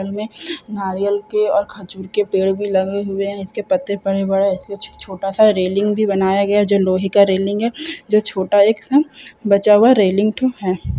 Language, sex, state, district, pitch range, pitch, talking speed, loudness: Hindi, female, Bihar, Saran, 195-215 Hz, 200 Hz, 190 wpm, -17 LUFS